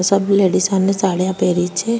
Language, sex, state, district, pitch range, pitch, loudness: Rajasthani, female, Rajasthan, Nagaur, 185-195 Hz, 190 Hz, -16 LUFS